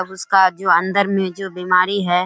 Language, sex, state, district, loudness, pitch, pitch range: Hindi, female, Bihar, Kishanganj, -17 LUFS, 190 Hz, 180-195 Hz